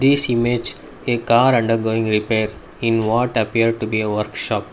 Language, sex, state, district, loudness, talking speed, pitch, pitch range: English, male, Karnataka, Bangalore, -19 LUFS, 175 wpm, 115 Hz, 110-120 Hz